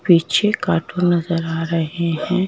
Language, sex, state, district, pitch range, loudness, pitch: Hindi, female, Madhya Pradesh, Bhopal, 165-180 Hz, -19 LUFS, 170 Hz